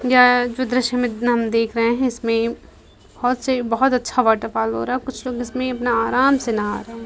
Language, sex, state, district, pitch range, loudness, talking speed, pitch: Hindi, female, Bihar, Begusarai, 230-255 Hz, -19 LUFS, 220 wpm, 245 Hz